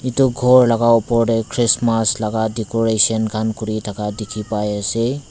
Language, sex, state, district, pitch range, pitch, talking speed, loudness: Nagamese, male, Nagaland, Dimapur, 110-115 Hz, 115 Hz, 160 wpm, -17 LUFS